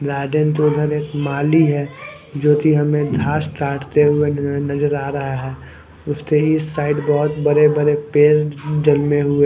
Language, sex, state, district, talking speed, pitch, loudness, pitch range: Hindi, male, Chandigarh, Chandigarh, 135 wpm, 150 Hz, -17 LUFS, 145-150 Hz